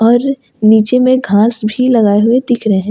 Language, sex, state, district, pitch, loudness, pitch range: Hindi, female, Jharkhand, Ranchi, 230 Hz, -11 LUFS, 215-250 Hz